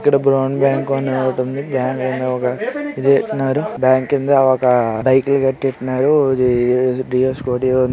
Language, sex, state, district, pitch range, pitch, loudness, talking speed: Telugu, male, Andhra Pradesh, Srikakulam, 130-135 Hz, 130 Hz, -16 LUFS, 70 wpm